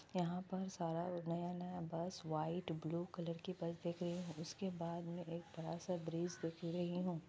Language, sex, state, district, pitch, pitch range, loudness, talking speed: Hindi, female, Bihar, Kishanganj, 170 Hz, 165-180 Hz, -44 LUFS, 195 wpm